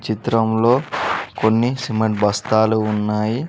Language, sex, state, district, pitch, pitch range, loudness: Telugu, male, Telangana, Mahabubabad, 110 Hz, 110-115 Hz, -18 LUFS